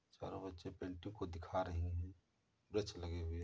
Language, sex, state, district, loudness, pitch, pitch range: Hindi, male, Uttar Pradesh, Muzaffarnagar, -46 LUFS, 95 Hz, 85-95 Hz